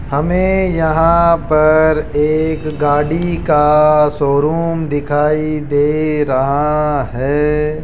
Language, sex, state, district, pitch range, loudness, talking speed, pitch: Hindi, male, Rajasthan, Jaipur, 145-160 Hz, -14 LUFS, 85 wpm, 150 Hz